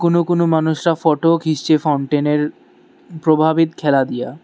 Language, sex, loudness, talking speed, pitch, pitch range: Bengali, male, -17 LUFS, 150 wpm, 160 Hz, 150-165 Hz